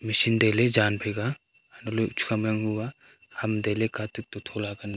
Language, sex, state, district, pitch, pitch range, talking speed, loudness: Wancho, male, Arunachal Pradesh, Longding, 110 Hz, 105-110 Hz, 240 wpm, -26 LUFS